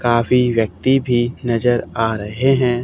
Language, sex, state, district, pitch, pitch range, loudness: Hindi, male, Haryana, Charkhi Dadri, 120 Hz, 115-125 Hz, -17 LUFS